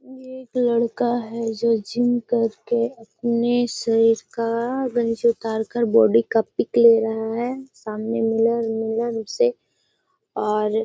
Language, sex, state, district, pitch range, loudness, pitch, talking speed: Hindi, female, Bihar, Gaya, 225-240 Hz, -21 LUFS, 230 Hz, 120 wpm